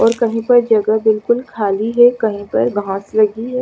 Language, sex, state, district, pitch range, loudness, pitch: Hindi, female, Chandigarh, Chandigarh, 210-240 Hz, -15 LUFS, 220 Hz